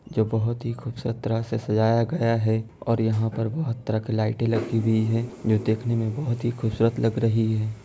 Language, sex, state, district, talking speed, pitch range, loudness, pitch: Hindi, male, Bihar, Kishanganj, 220 wpm, 110-115 Hz, -25 LUFS, 115 Hz